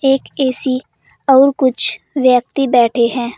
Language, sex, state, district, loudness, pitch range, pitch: Hindi, female, Uttar Pradesh, Saharanpur, -14 LUFS, 245-270 Hz, 260 Hz